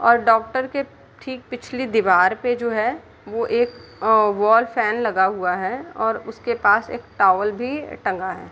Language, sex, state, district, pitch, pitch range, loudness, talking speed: Hindi, female, Bihar, Gopalganj, 230 Hz, 210-250 Hz, -20 LUFS, 175 wpm